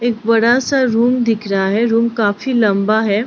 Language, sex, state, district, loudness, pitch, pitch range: Hindi, female, Bihar, Gopalganj, -15 LUFS, 230 Hz, 210-240 Hz